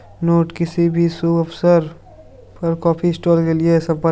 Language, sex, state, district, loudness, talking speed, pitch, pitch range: Hindi, male, Bihar, Supaul, -17 LUFS, 160 wpm, 165 Hz, 165-170 Hz